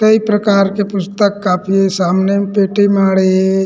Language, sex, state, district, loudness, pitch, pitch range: Chhattisgarhi, male, Chhattisgarh, Rajnandgaon, -13 LUFS, 195 Hz, 190-205 Hz